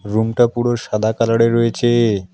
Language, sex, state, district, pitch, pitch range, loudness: Bengali, male, West Bengal, Alipurduar, 115 Hz, 110-120 Hz, -16 LUFS